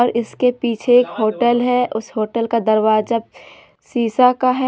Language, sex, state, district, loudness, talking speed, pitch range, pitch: Hindi, female, Jharkhand, Deoghar, -17 LUFS, 165 wpm, 220-250 Hz, 235 Hz